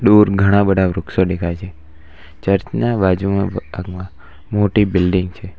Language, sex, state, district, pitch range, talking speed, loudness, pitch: Gujarati, male, Gujarat, Valsad, 90-100 Hz, 140 wpm, -17 LUFS, 95 Hz